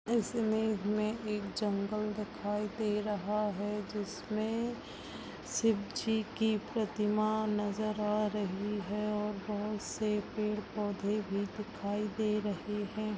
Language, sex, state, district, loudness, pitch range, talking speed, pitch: Hindi, female, Chhattisgarh, Balrampur, -35 LUFS, 205-215 Hz, 125 wpm, 210 Hz